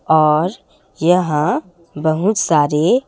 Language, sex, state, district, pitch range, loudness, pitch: Hindi, female, Chhattisgarh, Raipur, 155-180 Hz, -16 LUFS, 165 Hz